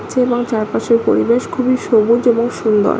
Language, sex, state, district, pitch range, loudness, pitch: Bengali, female, West Bengal, Kolkata, 225-250 Hz, -15 LUFS, 235 Hz